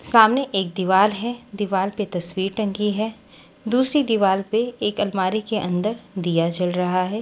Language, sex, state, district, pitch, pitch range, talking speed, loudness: Hindi, female, Haryana, Charkhi Dadri, 205 Hz, 190-220 Hz, 165 wpm, -21 LUFS